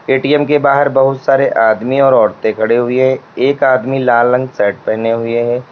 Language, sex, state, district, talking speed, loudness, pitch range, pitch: Hindi, male, Uttar Pradesh, Lalitpur, 200 wpm, -12 LUFS, 115-135 Hz, 130 Hz